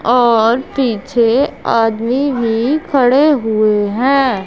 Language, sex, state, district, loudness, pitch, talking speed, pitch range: Hindi, female, Punjab, Pathankot, -13 LUFS, 245 Hz, 95 wpm, 225-270 Hz